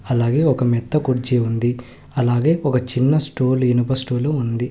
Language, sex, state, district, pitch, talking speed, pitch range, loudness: Telugu, male, Telangana, Hyderabad, 125 Hz, 155 wpm, 120-135 Hz, -18 LUFS